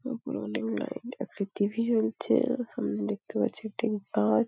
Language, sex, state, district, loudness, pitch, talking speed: Bengali, female, West Bengal, Paschim Medinipur, -30 LUFS, 220 Hz, 145 wpm